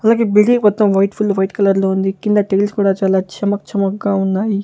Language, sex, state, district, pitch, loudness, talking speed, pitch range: Telugu, male, Andhra Pradesh, Sri Satya Sai, 200 Hz, -15 LUFS, 205 wpm, 195-210 Hz